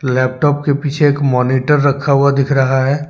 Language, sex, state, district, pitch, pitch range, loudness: Hindi, male, Jharkhand, Deoghar, 140 Hz, 130-145 Hz, -14 LUFS